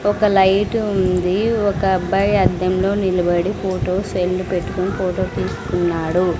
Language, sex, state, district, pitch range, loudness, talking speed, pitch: Telugu, female, Andhra Pradesh, Sri Satya Sai, 180-200 Hz, -18 LUFS, 105 wpm, 190 Hz